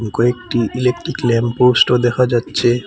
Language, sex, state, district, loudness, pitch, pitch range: Bengali, male, Assam, Hailakandi, -15 LUFS, 120 Hz, 120-125 Hz